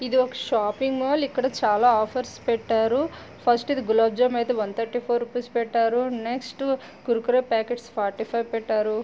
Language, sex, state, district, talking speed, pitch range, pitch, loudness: Telugu, female, Andhra Pradesh, Srikakulam, 155 wpm, 225-255 Hz, 240 Hz, -24 LUFS